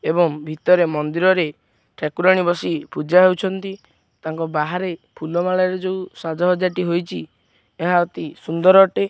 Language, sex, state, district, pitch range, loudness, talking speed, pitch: Odia, male, Odisha, Khordha, 155-185 Hz, -19 LUFS, 125 wpm, 175 Hz